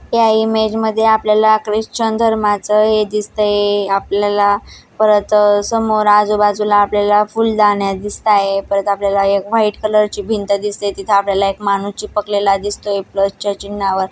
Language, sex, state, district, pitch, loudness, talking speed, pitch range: Marathi, female, Maharashtra, Dhule, 205 Hz, -15 LUFS, 140 wpm, 200-215 Hz